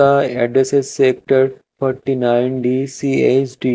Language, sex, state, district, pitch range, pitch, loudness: Hindi, male, Chandigarh, Chandigarh, 130-135 Hz, 130 Hz, -16 LUFS